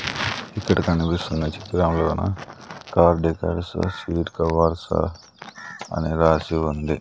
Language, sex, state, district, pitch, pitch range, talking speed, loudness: Telugu, male, Andhra Pradesh, Sri Satya Sai, 85 Hz, 80-90 Hz, 85 wpm, -22 LUFS